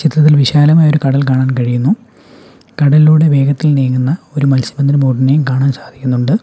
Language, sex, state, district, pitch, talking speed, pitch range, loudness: Malayalam, male, Kerala, Kollam, 140 Hz, 130 wpm, 130-155 Hz, -11 LUFS